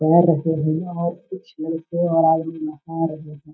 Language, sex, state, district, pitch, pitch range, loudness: Hindi, male, Bihar, Darbhanga, 160 Hz, 155-170 Hz, -21 LUFS